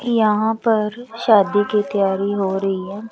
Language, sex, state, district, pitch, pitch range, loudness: Hindi, female, Chandigarh, Chandigarh, 210 Hz, 200-225 Hz, -18 LUFS